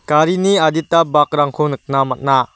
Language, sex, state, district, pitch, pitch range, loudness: Garo, male, Meghalaya, West Garo Hills, 150 Hz, 135-165 Hz, -15 LUFS